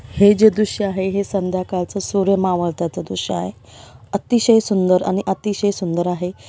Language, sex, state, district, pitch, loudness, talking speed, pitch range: Marathi, female, Maharashtra, Dhule, 190 Hz, -18 LUFS, 155 wpm, 175-200 Hz